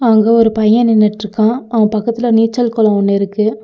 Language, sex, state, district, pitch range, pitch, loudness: Tamil, female, Tamil Nadu, Nilgiris, 215-230 Hz, 220 Hz, -13 LUFS